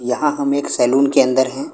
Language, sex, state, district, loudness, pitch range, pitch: Hindi, male, Punjab, Pathankot, -16 LUFS, 125-145 Hz, 140 Hz